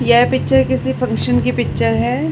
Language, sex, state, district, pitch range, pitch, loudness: Hindi, female, Uttar Pradesh, Varanasi, 120-130 Hz, 125 Hz, -16 LUFS